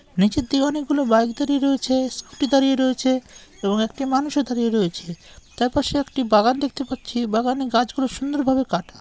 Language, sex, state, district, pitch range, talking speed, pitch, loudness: Bengali, male, West Bengal, Malda, 230-280 Hz, 165 wpm, 260 Hz, -21 LUFS